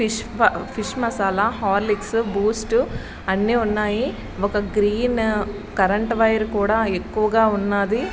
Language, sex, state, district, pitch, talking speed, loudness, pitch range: Telugu, female, Andhra Pradesh, Srikakulam, 215 Hz, 105 wpm, -21 LUFS, 205-225 Hz